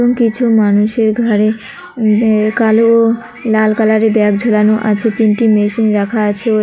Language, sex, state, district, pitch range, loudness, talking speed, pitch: Bengali, female, West Bengal, Cooch Behar, 215-230 Hz, -12 LUFS, 155 wpm, 220 Hz